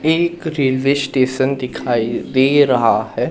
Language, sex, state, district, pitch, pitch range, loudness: Hindi, male, Madhya Pradesh, Katni, 135 Hz, 130-145 Hz, -16 LUFS